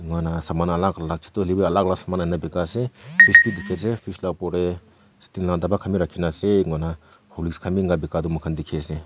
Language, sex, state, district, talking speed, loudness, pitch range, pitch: Nagamese, male, Nagaland, Kohima, 240 wpm, -21 LUFS, 80-95 Hz, 90 Hz